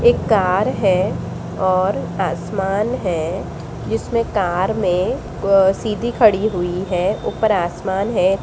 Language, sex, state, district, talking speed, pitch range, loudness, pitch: Hindi, female, Bihar, Jamui, 120 wpm, 185-215 Hz, -18 LUFS, 195 Hz